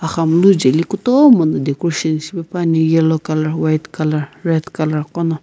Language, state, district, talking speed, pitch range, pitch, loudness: Sumi, Nagaland, Kohima, 145 wpm, 155-170 Hz, 160 Hz, -15 LUFS